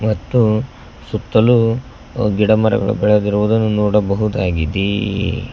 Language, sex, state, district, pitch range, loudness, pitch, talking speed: Kannada, male, Karnataka, Koppal, 100-110 Hz, -16 LUFS, 105 Hz, 65 wpm